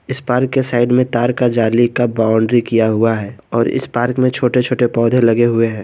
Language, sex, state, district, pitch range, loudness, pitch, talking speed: Hindi, male, Jharkhand, Garhwa, 115-125 Hz, -15 LUFS, 120 Hz, 235 wpm